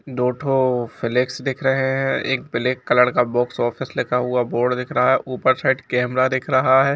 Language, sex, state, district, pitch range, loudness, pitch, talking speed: Hindi, male, Bihar, Gopalganj, 125-135 Hz, -20 LUFS, 130 Hz, 205 wpm